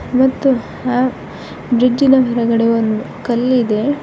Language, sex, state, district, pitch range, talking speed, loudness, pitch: Kannada, female, Karnataka, Bidar, 235-260 Hz, 105 wpm, -15 LUFS, 250 Hz